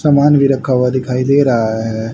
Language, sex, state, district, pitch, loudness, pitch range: Hindi, male, Haryana, Rohtak, 130 Hz, -13 LUFS, 115-140 Hz